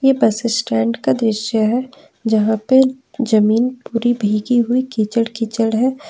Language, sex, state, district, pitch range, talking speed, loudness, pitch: Hindi, female, Jharkhand, Ranchi, 220-255 Hz, 135 wpm, -17 LUFS, 230 Hz